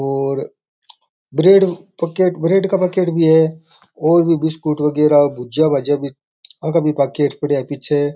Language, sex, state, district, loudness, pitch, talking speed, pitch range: Rajasthani, male, Rajasthan, Nagaur, -16 LUFS, 160 Hz, 145 wpm, 145-170 Hz